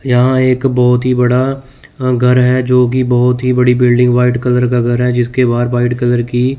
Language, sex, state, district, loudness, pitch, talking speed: Hindi, male, Chandigarh, Chandigarh, -12 LUFS, 125 Hz, 220 wpm